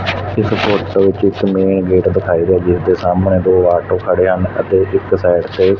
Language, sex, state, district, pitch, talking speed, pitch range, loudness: Punjabi, male, Punjab, Fazilka, 95 Hz, 185 wpm, 90-100 Hz, -14 LUFS